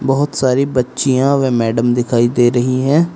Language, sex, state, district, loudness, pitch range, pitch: Hindi, male, Uttar Pradesh, Saharanpur, -14 LUFS, 120-135 Hz, 130 Hz